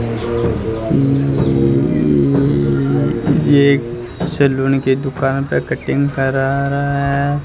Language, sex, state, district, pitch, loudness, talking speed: Hindi, male, Rajasthan, Jaipur, 120 Hz, -16 LUFS, 80 wpm